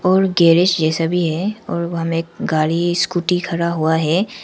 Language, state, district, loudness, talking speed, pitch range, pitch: Hindi, Arunachal Pradesh, Lower Dibang Valley, -17 LUFS, 190 wpm, 165-180 Hz, 170 Hz